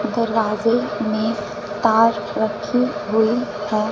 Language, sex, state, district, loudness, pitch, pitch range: Hindi, female, Punjab, Fazilka, -20 LUFS, 215 Hz, 210-230 Hz